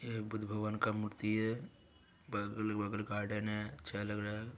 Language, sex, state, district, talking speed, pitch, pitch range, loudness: Hindi, male, Bihar, Gaya, 185 wpm, 105 Hz, 105-110 Hz, -39 LUFS